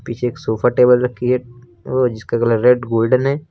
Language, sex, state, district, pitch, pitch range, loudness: Hindi, male, Uttar Pradesh, Lucknow, 125 Hz, 115-125 Hz, -16 LUFS